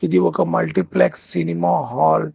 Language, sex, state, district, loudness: Telugu, male, Telangana, Hyderabad, -17 LUFS